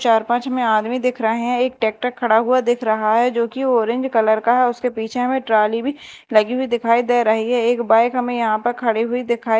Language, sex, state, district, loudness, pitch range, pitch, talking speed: Hindi, female, Madhya Pradesh, Dhar, -18 LUFS, 225-250 Hz, 240 Hz, 240 wpm